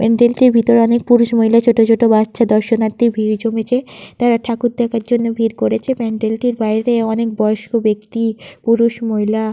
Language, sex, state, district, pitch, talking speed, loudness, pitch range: Bengali, female, West Bengal, Purulia, 230 Hz, 170 wpm, -15 LUFS, 220-235 Hz